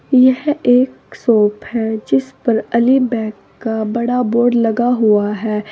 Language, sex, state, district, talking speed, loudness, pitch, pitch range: Hindi, female, Uttar Pradesh, Saharanpur, 145 wpm, -15 LUFS, 230 Hz, 215-245 Hz